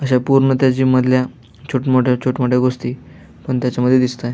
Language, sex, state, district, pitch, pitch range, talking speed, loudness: Marathi, male, Maharashtra, Aurangabad, 130 Hz, 125-130 Hz, 195 wpm, -16 LUFS